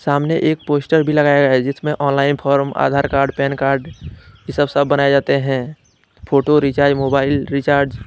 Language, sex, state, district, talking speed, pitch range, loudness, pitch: Hindi, male, Jharkhand, Deoghar, 180 wpm, 135-145 Hz, -16 LUFS, 140 Hz